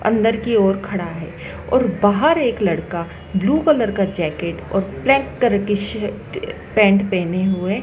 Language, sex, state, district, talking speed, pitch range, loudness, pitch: Hindi, female, Madhya Pradesh, Dhar, 155 wpm, 185-225 Hz, -19 LUFS, 200 Hz